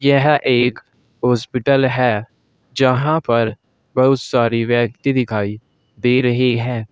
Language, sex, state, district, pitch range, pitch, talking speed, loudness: Hindi, male, Uttar Pradesh, Saharanpur, 115-130 Hz, 125 Hz, 115 wpm, -17 LUFS